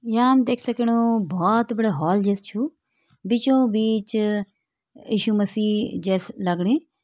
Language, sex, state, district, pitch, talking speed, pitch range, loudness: Hindi, female, Uttarakhand, Tehri Garhwal, 220 Hz, 130 wpm, 200-240 Hz, -22 LUFS